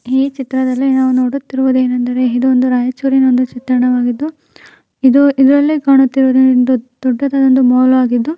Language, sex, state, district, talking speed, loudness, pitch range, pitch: Kannada, female, Karnataka, Raichur, 120 wpm, -12 LUFS, 255-270 Hz, 260 Hz